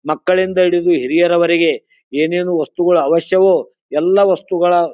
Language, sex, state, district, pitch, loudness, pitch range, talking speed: Kannada, male, Karnataka, Bijapur, 180 Hz, -14 LUFS, 170-195 Hz, 120 wpm